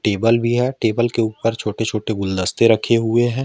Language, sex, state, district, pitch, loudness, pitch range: Hindi, male, Jharkhand, Ranchi, 115 Hz, -18 LUFS, 110-120 Hz